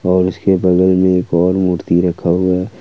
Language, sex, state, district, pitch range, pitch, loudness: Hindi, male, Jharkhand, Ranchi, 90-95 Hz, 90 Hz, -14 LUFS